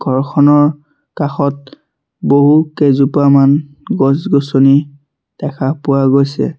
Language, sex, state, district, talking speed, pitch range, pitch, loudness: Assamese, male, Assam, Sonitpur, 75 wpm, 140-145 Hz, 140 Hz, -12 LUFS